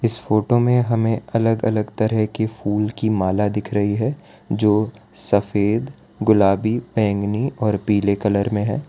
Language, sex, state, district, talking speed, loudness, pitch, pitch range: Hindi, male, Gujarat, Valsad, 155 wpm, -20 LUFS, 110 Hz, 105-115 Hz